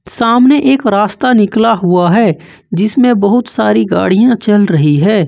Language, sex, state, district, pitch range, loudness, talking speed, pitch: Hindi, male, Jharkhand, Ranchi, 180-235 Hz, -10 LUFS, 150 wpm, 210 Hz